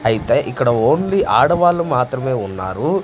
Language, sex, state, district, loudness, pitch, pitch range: Telugu, male, Andhra Pradesh, Manyam, -16 LUFS, 130 Hz, 115-175 Hz